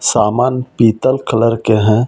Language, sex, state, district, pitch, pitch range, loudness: Hindi, male, Delhi, New Delhi, 115 Hz, 110-125 Hz, -14 LUFS